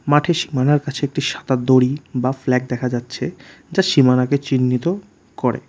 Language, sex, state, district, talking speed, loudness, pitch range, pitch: Bengali, male, West Bengal, Alipurduar, 145 wpm, -19 LUFS, 125-145 Hz, 135 Hz